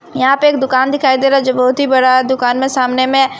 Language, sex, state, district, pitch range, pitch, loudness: Hindi, female, Himachal Pradesh, Shimla, 255-270 Hz, 260 Hz, -12 LUFS